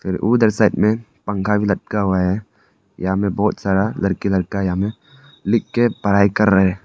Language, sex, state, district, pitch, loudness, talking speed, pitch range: Hindi, male, Arunachal Pradesh, Papum Pare, 100 Hz, -18 LUFS, 185 wpm, 95-105 Hz